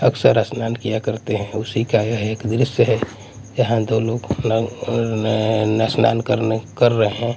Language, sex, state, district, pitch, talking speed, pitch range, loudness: Hindi, male, Punjab, Kapurthala, 110 Hz, 165 wpm, 110-115 Hz, -19 LUFS